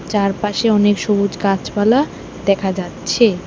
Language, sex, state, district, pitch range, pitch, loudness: Bengali, female, West Bengal, Alipurduar, 195-210 Hz, 200 Hz, -17 LUFS